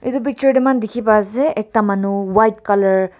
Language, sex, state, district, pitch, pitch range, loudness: Nagamese, female, Nagaland, Kohima, 220 Hz, 200-260 Hz, -16 LUFS